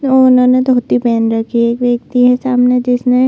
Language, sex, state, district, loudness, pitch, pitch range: Hindi, female, Chhattisgarh, Bilaspur, -12 LUFS, 250 Hz, 240-255 Hz